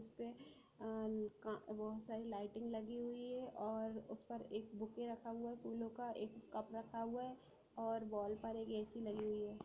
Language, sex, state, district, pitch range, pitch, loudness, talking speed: Hindi, female, Bihar, Sitamarhi, 215-230 Hz, 225 Hz, -47 LUFS, 205 wpm